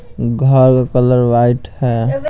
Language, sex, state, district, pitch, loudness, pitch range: Hindi, male, Bihar, Patna, 125 Hz, -13 LUFS, 120-130 Hz